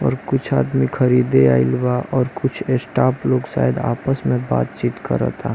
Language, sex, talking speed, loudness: Bhojpuri, male, 175 wpm, -18 LUFS